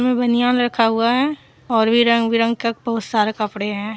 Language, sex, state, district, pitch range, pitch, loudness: Hindi, female, Jharkhand, Deoghar, 220-240 Hz, 230 Hz, -18 LUFS